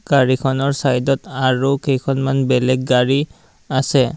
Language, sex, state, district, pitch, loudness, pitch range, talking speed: Assamese, male, Assam, Kamrup Metropolitan, 135 Hz, -17 LUFS, 130-135 Hz, 100 wpm